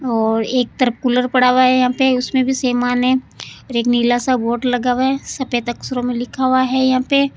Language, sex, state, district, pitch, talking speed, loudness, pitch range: Hindi, female, Rajasthan, Jaipur, 250 Hz, 220 wpm, -17 LUFS, 245-260 Hz